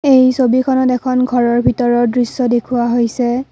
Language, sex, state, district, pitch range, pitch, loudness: Assamese, female, Assam, Kamrup Metropolitan, 240-255 Hz, 245 Hz, -14 LUFS